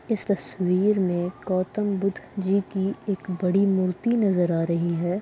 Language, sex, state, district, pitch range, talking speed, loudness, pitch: Hindi, female, Maharashtra, Pune, 180-200 Hz, 160 wpm, -24 LUFS, 190 Hz